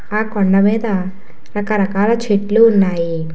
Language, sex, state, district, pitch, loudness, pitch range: Telugu, female, Telangana, Hyderabad, 200 Hz, -15 LUFS, 190-215 Hz